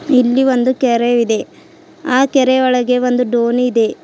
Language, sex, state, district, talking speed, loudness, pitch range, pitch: Kannada, female, Karnataka, Bidar, 150 wpm, -14 LUFS, 240-260 Hz, 250 Hz